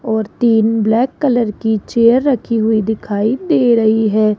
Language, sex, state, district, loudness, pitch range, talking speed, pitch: Hindi, female, Rajasthan, Jaipur, -14 LUFS, 220-240 Hz, 165 wpm, 225 Hz